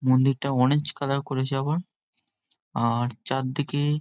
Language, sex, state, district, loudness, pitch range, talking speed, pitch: Bengali, male, West Bengal, Jhargram, -25 LUFS, 130-145 Hz, 120 wpm, 135 Hz